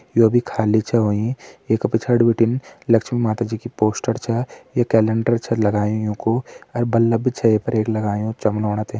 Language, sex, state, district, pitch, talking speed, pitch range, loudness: Hindi, male, Uttarakhand, Uttarkashi, 115 Hz, 195 wpm, 110-120 Hz, -20 LUFS